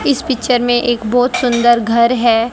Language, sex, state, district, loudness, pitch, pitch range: Hindi, female, Haryana, Jhajjar, -13 LUFS, 240 Hz, 235-250 Hz